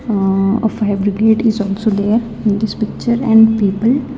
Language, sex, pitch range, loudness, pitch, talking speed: English, female, 200-225 Hz, -14 LUFS, 220 Hz, 160 wpm